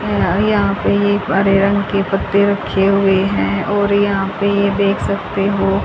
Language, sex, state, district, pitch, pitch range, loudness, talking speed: Hindi, female, Haryana, Charkhi Dadri, 200 Hz, 195-200 Hz, -15 LUFS, 185 wpm